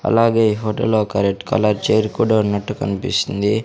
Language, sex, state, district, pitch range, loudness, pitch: Telugu, male, Andhra Pradesh, Sri Satya Sai, 100-110 Hz, -18 LUFS, 110 Hz